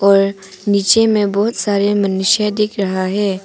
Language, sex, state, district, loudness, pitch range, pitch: Hindi, female, Arunachal Pradesh, Papum Pare, -15 LUFS, 195-210 Hz, 200 Hz